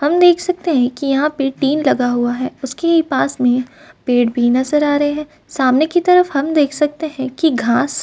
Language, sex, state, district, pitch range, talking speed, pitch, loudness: Hindi, female, Uttar Pradesh, Varanasi, 255-315 Hz, 225 wpm, 285 Hz, -16 LUFS